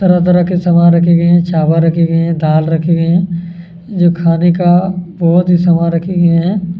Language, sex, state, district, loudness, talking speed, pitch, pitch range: Hindi, male, Chhattisgarh, Kabirdham, -11 LUFS, 210 wpm, 170 Hz, 170-180 Hz